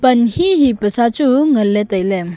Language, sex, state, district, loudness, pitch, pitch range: Wancho, female, Arunachal Pradesh, Longding, -14 LUFS, 235 Hz, 205-270 Hz